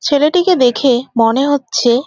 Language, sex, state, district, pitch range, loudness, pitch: Bengali, female, West Bengal, Kolkata, 240-290 Hz, -13 LUFS, 265 Hz